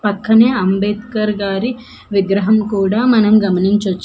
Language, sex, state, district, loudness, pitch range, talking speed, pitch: Telugu, female, Andhra Pradesh, Manyam, -14 LUFS, 195-220 Hz, 105 wpm, 210 Hz